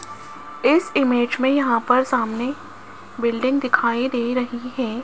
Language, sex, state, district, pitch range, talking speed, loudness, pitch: Hindi, female, Rajasthan, Jaipur, 235-260 Hz, 130 wpm, -20 LUFS, 245 Hz